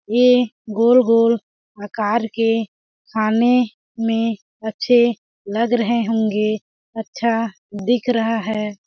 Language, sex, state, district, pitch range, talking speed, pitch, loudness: Hindi, female, Chhattisgarh, Balrampur, 215-235 Hz, 100 wpm, 225 Hz, -18 LUFS